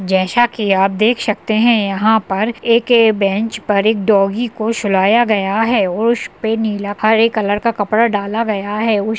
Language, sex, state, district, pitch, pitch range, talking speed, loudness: Hindi, female, Uttar Pradesh, Hamirpur, 215 Hz, 205-230 Hz, 190 wpm, -15 LUFS